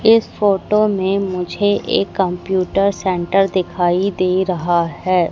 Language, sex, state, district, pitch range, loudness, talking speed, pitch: Hindi, female, Madhya Pradesh, Katni, 180-200 Hz, -17 LUFS, 125 wpm, 190 Hz